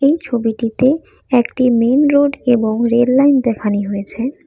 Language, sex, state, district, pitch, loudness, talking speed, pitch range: Bengali, female, Assam, Kamrup Metropolitan, 245 Hz, -15 LUFS, 135 wpm, 230-275 Hz